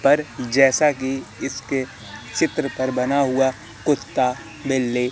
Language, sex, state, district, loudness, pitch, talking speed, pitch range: Hindi, male, Madhya Pradesh, Katni, -21 LUFS, 130 Hz, 115 wpm, 125-140 Hz